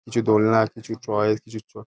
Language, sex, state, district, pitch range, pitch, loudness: Bengali, male, West Bengal, Paschim Medinipur, 110-115 Hz, 110 Hz, -22 LUFS